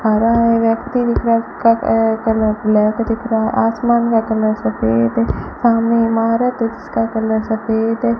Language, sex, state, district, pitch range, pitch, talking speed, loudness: Hindi, female, Rajasthan, Bikaner, 220-230 Hz, 225 Hz, 170 wpm, -16 LUFS